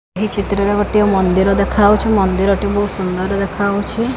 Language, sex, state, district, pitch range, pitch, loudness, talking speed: Odia, female, Odisha, Khordha, 195-205 Hz, 200 Hz, -15 LUFS, 160 wpm